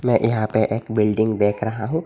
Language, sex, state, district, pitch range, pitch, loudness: Hindi, male, Assam, Hailakandi, 110-115 Hz, 110 Hz, -20 LUFS